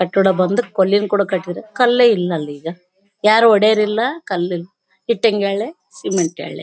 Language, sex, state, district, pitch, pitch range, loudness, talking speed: Kannada, female, Karnataka, Bellary, 200 Hz, 180-220 Hz, -16 LUFS, 135 wpm